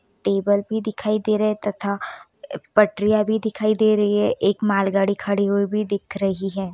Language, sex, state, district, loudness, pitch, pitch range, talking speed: Hindi, female, Bihar, Muzaffarpur, -21 LUFS, 205 Hz, 200-215 Hz, 185 wpm